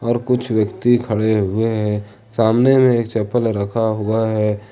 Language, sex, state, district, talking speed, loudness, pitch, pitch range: Hindi, male, Jharkhand, Ranchi, 165 wpm, -17 LUFS, 110 Hz, 105-120 Hz